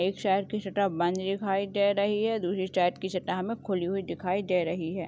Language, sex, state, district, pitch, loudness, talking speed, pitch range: Hindi, female, Chhattisgarh, Bilaspur, 190 Hz, -29 LUFS, 235 wpm, 180-200 Hz